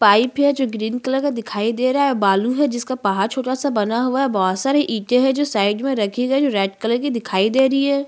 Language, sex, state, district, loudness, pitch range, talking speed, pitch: Hindi, female, Chhattisgarh, Bastar, -19 LUFS, 210-270 Hz, 290 wpm, 250 Hz